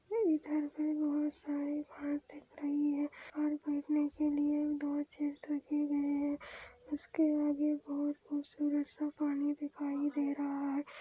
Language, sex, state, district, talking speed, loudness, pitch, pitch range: Hindi, female, Andhra Pradesh, Anantapur, 50 wpm, -36 LUFS, 290 Hz, 290-300 Hz